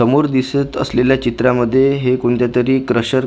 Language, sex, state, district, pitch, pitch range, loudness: Marathi, male, Maharashtra, Gondia, 130 Hz, 125-135 Hz, -15 LUFS